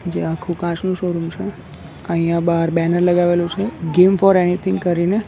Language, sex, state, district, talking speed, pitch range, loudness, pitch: Gujarati, male, Gujarat, Valsad, 160 wpm, 170-185 Hz, -18 LUFS, 175 Hz